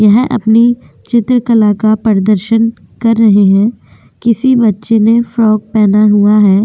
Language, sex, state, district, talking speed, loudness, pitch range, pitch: Hindi, female, Uttar Pradesh, Jyotiba Phule Nagar, 145 wpm, -10 LUFS, 210-235 Hz, 220 Hz